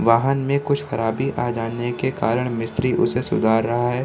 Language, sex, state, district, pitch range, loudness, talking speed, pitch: Hindi, male, Bihar, Samastipur, 115-135 Hz, -21 LUFS, 190 wpm, 120 Hz